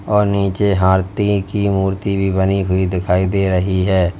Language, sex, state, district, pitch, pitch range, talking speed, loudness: Hindi, male, Uttar Pradesh, Lalitpur, 95 Hz, 95-100 Hz, 170 wpm, -16 LUFS